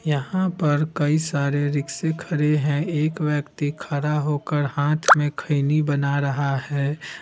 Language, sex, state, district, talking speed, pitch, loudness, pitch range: Hindi, male, Bihar, Vaishali, 140 wpm, 150 Hz, -22 LUFS, 145-155 Hz